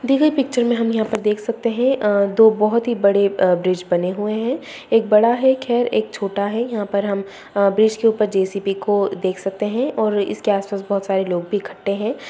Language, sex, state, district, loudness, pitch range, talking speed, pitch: Hindi, female, Bihar, Madhepura, -19 LUFS, 200-230 Hz, 235 wpm, 210 Hz